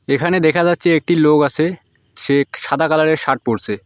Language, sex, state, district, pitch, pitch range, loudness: Bengali, female, West Bengal, Alipurduar, 155 Hz, 140-165 Hz, -15 LUFS